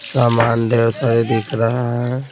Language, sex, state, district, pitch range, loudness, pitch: Hindi, male, Bihar, Patna, 115-120 Hz, -17 LUFS, 115 Hz